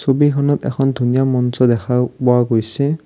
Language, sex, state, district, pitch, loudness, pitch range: Assamese, male, Assam, Kamrup Metropolitan, 125 Hz, -16 LUFS, 125-140 Hz